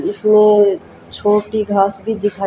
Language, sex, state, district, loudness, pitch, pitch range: Hindi, female, Haryana, Jhajjar, -14 LUFS, 210 Hz, 200-215 Hz